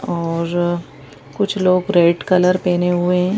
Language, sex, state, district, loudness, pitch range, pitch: Hindi, female, Madhya Pradesh, Bhopal, -17 LUFS, 170-180 Hz, 175 Hz